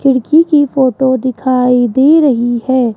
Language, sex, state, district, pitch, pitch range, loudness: Hindi, female, Rajasthan, Jaipur, 260 Hz, 250-275 Hz, -11 LUFS